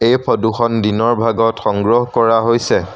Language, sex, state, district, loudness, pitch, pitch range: Assamese, male, Assam, Sonitpur, -15 LUFS, 115 Hz, 115-120 Hz